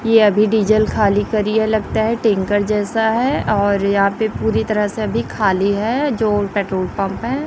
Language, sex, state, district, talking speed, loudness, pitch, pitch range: Hindi, female, Chhattisgarh, Raipur, 190 wpm, -17 LUFS, 215 Hz, 200-220 Hz